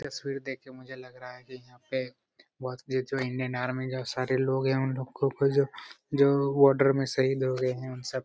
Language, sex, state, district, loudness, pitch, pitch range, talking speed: Hindi, male, Bihar, Araria, -28 LUFS, 130 Hz, 130-135 Hz, 155 wpm